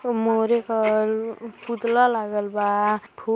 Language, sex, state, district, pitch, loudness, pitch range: Hindi, female, Uttar Pradesh, Gorakhpur, 225 Hz, -22 LUFS, 215-235 Hz